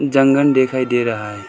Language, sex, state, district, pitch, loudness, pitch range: Hindi, male, Arunachal Pradesh, Lower Dibang Valley, 130 Hz, -16 LUFS, 115-135 Hz